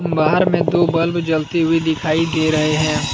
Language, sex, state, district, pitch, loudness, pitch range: Hindi, male, Jharkhand, Deoghar, 160 Hz, -17 LUFS, 155-170 Hz